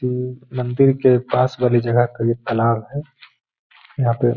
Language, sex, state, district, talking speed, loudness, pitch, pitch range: Hindi, male, Bihar, Gaya, 165 wpm, -19 LUFS, 125 Hz, 120-130 Hz